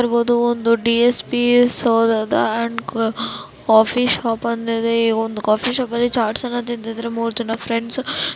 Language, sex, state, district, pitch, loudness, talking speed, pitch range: Kannada, female, Karnataka, Mysore, 230 Hz, -18 LUFS, 110 wpm, 230-240 Hz